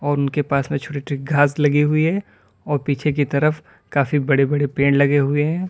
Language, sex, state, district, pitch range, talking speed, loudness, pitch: Hindi, male, Uttar Pradesh, Lalitpur, 140-150 Hz, 220 wpm, -19 LUFS, 145 Hz